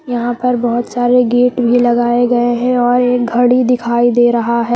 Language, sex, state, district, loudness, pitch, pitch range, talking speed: Hindi, female, Jharkhand, Palamu, -13 LUFS, 245 Hz, 240-245 Hz, 200 wpm